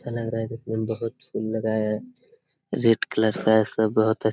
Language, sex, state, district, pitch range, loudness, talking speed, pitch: Hindi, male, Bihar, Jamui, 110-115 Hz, -24 LUFS, 235 wpm, 110 Hz